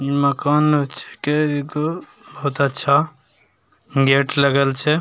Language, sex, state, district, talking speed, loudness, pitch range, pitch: Maithili, male, Bihar, Begusarai, 110 wpm, -19 LUFS, 140-150 Hz, 140 Hz